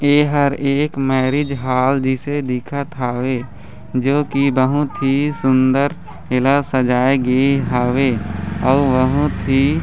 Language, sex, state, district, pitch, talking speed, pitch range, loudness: Chhattisgarhi, male, Chhattisgarh, Raigarh, 135 Hz, 115 wpm, 125-140 Hz, -17 LUFS